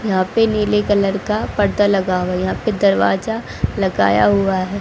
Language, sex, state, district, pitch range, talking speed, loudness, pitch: Hindi, female, Haryana, Jhajjar, 185-210 Hz, 185 wpm, -17 LUFS, 200 Hz